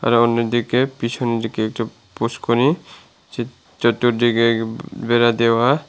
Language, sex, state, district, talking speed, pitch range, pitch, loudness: Bengali, male, Tripura, Unakoti, 90 wpm, 115-120 Hz, 120 Hz, -19 LUFS